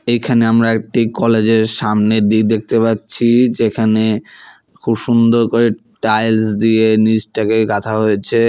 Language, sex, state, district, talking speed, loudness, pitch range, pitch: Bengali, male, West Bengal, Alipurduar, 125 wpm, -14 LUFS, 110-115 Hz, 110 Hz